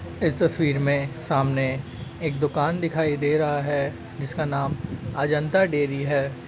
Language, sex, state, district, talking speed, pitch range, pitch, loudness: Hindi, male, Bihar, Begusarai, 140 wpm, 140-155 Hz, 145 Hz, -24 LUFS